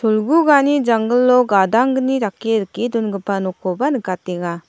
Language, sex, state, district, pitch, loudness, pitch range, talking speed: Garo, female, Meghalaya, South Garo Hills, 225 Hz, -17 LUFS, 195-255 Hz, 100 wpm